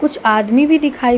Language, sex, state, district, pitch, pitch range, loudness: Hindi, female, Uttar Pradesh, Hamirpur, 265 Hz, 240-295 Hz, -14 LUFS